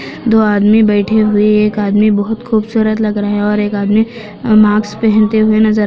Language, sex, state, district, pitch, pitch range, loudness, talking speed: Hindi, female, Andhra Pradesh, Anantapur, 215 Hz, 210-220 Hz, -12 LUFS, 185 wpm